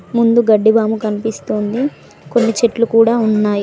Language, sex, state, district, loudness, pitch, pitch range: Telugu, female, Telangana, Mahabubabad, -14 LUFS, 225 Hz, 215-235 Hz